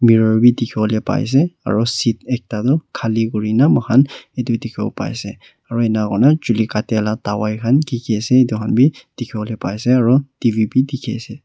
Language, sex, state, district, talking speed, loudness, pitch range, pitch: Nagamese, male, Nagaland, Kohima, 200 wpm, -17 LUFS, 110-130 Hz, 115 Hz